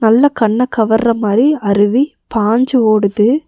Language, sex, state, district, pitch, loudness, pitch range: Tamil, female, Tamil Nadu, Nilgiris, 225 Hz, -13 LUFS, 215-260 Hz